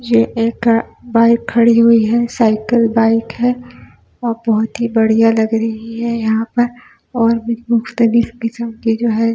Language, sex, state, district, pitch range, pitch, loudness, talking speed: Hindi, female, Delhi, New Delhi, 225-235 Hz, 230 Hz, -15 LUFS, 110 wpm